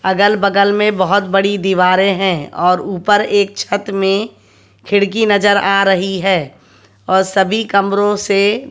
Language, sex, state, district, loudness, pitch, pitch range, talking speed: Hindi, female, Haryana, Jhajjar, -14 LUFS, 195 Hz, 190-205 Hz, 145 wpm